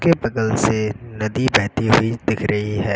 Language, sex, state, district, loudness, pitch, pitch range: Hindi, male, Uttar Pradesh, Lucknow, -19 LUFS, 110 Hz, 105-115 Hz